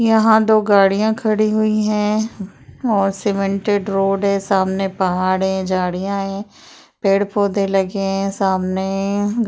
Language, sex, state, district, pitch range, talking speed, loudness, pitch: Hindi, female, Bihar, Darbhanga, 195-210 Hz, 120 wpm, -18 LUFS, 195 Hz